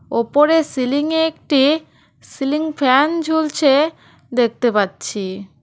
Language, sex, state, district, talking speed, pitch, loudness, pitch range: Bengali, female, West Bengal, Cooch Behar, 85 wpm, 280 Hz, -17 LUFS, 240-315 Hz